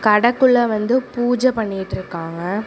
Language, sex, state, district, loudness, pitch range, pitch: Tamil, female, Tamil Nadu, Namakkal, -18 LUFS, 195-245 Hz, 225 Hz